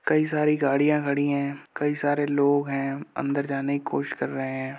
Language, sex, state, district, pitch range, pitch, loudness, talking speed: Hindi, male, Uttar Pradesh, Budaun, 140-145 Hz, 140 Hz, -25 LUFS, 200 wpm